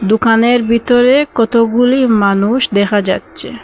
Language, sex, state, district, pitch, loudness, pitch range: Bengali, female, Assam, Hailakandi, 230 Hz, -12 LUFS, 210-245 Hz